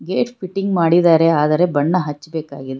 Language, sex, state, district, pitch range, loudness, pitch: Kannada, female, Karnataka, Bangalore, 150-180 Hz, -17 LUFS, 165 Hz